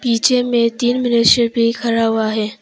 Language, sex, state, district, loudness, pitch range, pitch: Hindi, female, Arunachal Pradesh, Papum Pare, -15 LUFS, 230-240 Hz, 230 Hz